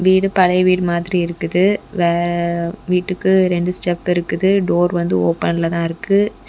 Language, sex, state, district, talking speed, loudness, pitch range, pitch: Tamil, female, Tamil Nadu, Kanyakumari, 140 wpm, -17 LUFS, 170-185 Hz, 175 Hz